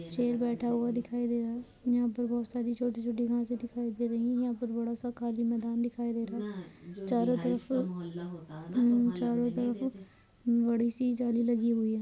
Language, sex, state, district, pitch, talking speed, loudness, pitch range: Hindi, female, Bihar, Bhagalpur, 235 Hz, 180 wpm, -32 LUFS, 230-240 Hz